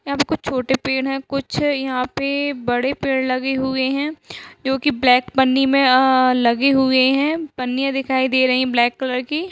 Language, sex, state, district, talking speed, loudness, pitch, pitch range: Hindi, female, Uttar Pradesh, Budaun, 195 wpm, -18 LUFS, 265 Hz, 255-275 Hz